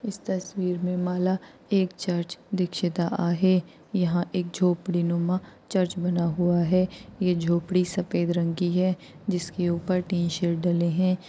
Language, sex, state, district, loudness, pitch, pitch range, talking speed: Hindi, female, Maharashtra, Aurangabad, -26 LUFS, 180 Hz, 175-185 Hz, 155 wpm